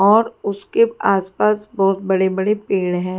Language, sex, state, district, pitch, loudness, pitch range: Hindi, female, Haryana, Jhajjar, 195 Hz, -18 LUFS, 190-210 Hz